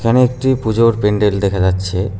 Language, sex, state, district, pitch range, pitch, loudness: Bengali, male, West Bengal, Cooch Behar, 95-115 Hz, 105 Hz, -15 LUFS